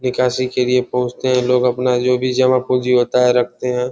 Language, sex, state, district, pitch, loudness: Hindi, male, Bihar, Vaishali, 125 Hz, -16 LUFS